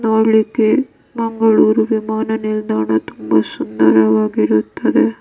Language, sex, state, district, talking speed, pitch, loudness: Kannada, female, Karnataka, Dakshina Kannada, 70 wpm, 215 Hz, -15 LUFS